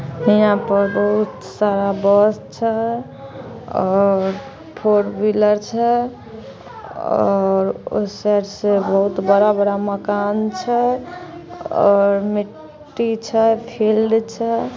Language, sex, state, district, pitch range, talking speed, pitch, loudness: Maithili, female, Bihar, Samastipur, 200-225 Hz, 95 wpm, 210 Hz, -18 LUFS